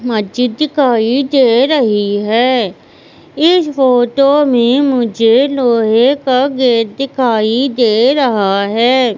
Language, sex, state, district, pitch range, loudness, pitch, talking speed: Hindi, female, Madhya Pradesh, Katni, 225-275 Hz, -12 LUFS, 250 Hz, 105 wpm